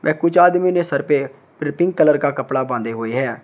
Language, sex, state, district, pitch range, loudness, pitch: Hindi, male, Uttar Pradesh, Shamli, 130-170 Hz, -18 LUFS, 145 Hz